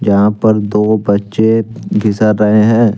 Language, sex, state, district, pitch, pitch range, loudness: Hindi, male, Jharkhand, Deoghar, 105 Hz, 105-110 Hz, -12 LUFS